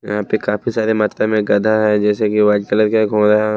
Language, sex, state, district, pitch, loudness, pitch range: Hindi, male, Himachal Pradesh, Shimla, 105 Hz, -15 LUFS, 105-110 Hz